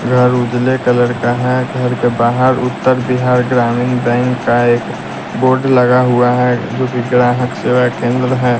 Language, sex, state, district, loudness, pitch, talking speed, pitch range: Hindi, male, Bihar, West Champaran, -13 LUFS, 125 Hz, 160 wpm, 120-125 Hz